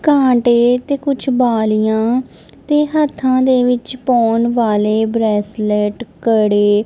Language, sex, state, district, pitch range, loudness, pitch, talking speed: Punjabi, female, Punjab, Kapurthala, 220-260 Hz, -15 LUFS, 235 Hz, 105 wpm